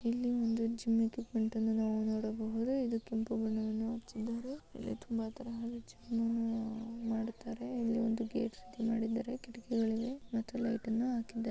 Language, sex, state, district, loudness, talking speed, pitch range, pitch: Kannada, female, Karnataka, Chamarajanagar, -37 LUFS, 105 wpm, 225-235 Hz, 230 Hz